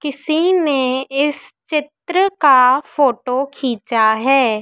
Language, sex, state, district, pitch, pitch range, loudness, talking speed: Hindi, female, Madhya Pradesh, Dhar, 275 Hz, 255-300 Hz, -16 LUFS, 105 wpm